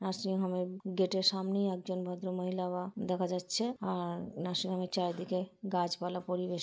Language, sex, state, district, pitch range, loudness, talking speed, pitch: Bengali, female, West Bengal, Jhargram, 180-190 Hz, -35 LUFS, 155 wpm, 185 Hz